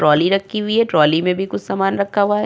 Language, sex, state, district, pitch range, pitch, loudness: Hindi, female, Uttar Pradesh, Jyotiba Phule Nagar, 175-205 Hz, 195 Hz, -17 LUFS